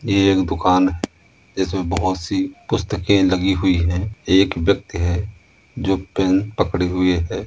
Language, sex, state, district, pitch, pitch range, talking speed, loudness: Hindi, male, Uttar Pradesh, Muzaffarnagar, 95 Hz, 90-100 Hz, 145 wpm, -19 LUFS